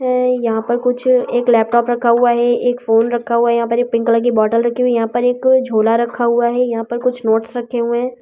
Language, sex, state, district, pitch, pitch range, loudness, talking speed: Hindi, female, Delhi, New Delhi, 240 Hz, 230-245 Hz, -15 LUFS, 270 wpm